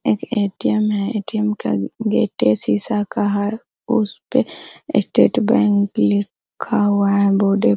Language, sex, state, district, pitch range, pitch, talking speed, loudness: Hindi, female, Bihar, Araria, 190-210 Hz, 205 Hz, 130 wpm, -18 LUFS